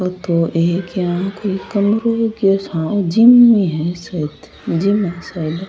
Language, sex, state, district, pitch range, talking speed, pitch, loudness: Rajasthani, female, Rajasthan, Churu, 170-200 Hz, 145 wpm, 185 Hz, -16 LUFS